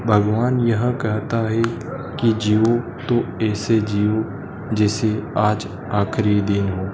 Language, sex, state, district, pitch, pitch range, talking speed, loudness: Hindi, male, Madhya Pradesh, Dhar, 110 Hz, 105-115 Hz, 120 wpm, -20 LUFS